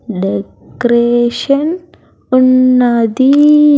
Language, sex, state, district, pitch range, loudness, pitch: Telugu, female, Andhra Pradesh, Sri Satya Sai, 235-285 Hz, -11 LUFS, 255 Hz